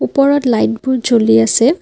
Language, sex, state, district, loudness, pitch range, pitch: Assamese, female, Assam, Kamrup Metropolitan, -13 LUFS, 225-275 Hz, 245 Hz